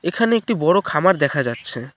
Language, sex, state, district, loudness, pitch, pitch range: Bengali, male, West Bengal, Cooch Behar, -18 LUFS, 160 Hz, 135-225 Hz